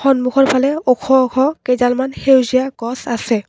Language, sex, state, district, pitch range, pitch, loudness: Assamese, female, Assam, Kamrup Metropolitan, 245-270 Hz, 260 Hz, -15 LUFS